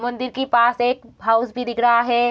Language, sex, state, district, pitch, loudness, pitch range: Hindi, female, Bihar, Kishanganj, 240 Hz, -19 LUFS, 235-245 Hz